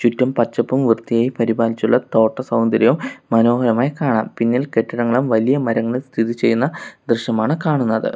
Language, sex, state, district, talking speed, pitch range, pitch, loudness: Malayalam, male, Kerala, Kollam, 110 wpm, 115-125 Hz, 115 Hz, -18 LUFS